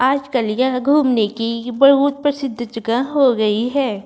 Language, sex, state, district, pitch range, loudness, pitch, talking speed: Hindi, female, Uttar Pradesh, Varanasi, 230-275 Hz, -17 LUFS, 255 Hz, 160 wpm